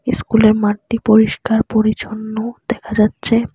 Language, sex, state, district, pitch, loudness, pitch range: Bengali, female, West Bengal, Alipurduar, 220 Hz, -16 LUFS, 215-225 Hz